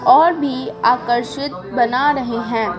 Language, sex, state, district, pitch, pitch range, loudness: Hindi, female, Bihar, Patna, 245 Hz, 235-285 Hz, -17 LUFS